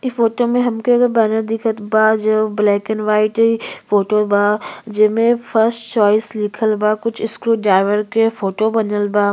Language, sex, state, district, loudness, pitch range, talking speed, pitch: Bhojpuri, female, Uttar Pradesh, Ghazipur, -16 LUFS, 210-225 Hz, 160 wpm, 220 Hz